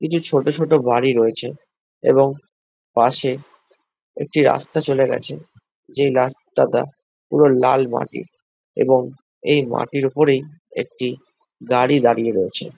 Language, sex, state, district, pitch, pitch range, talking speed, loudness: Bengali, male, West Bengal, Jhargram, 135 Hz, 125-145 Hz, 110 wpm, -18 LUFS